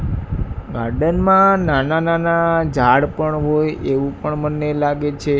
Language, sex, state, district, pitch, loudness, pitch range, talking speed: Gujarati, male, Gujarat, Gandhinagar, 150 Hz, -17 LUFS, 145-165 Hz, 135 wpm